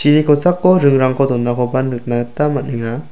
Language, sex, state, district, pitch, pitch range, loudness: Garo, male, Meghalaya, South Garo Hills, 130 Hz, 120-150 Hz, -15 LUFS